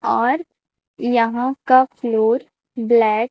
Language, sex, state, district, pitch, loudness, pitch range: Hindi, female, Chhattisgarh, Raipur, 240 Hz, -18 LUFS, 230-260 Hz